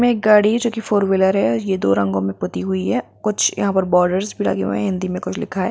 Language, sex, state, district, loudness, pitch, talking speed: Hindi, female, Bihar, Gopalganj, -18 LUFS, 185 Hz, 295 wpm